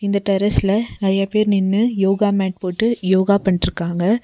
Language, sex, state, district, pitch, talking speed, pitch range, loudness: Tamil, female, Tamil Nadu, Nilgiris, 195 Hz, 140 wpm, 190-205 Hz, -18 LUFS